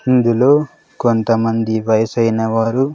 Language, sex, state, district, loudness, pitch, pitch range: Telugu, male, Andhra Pradesh, Sri Satya Sai, -15 LUFS, 115 Hz, 110-125 Hz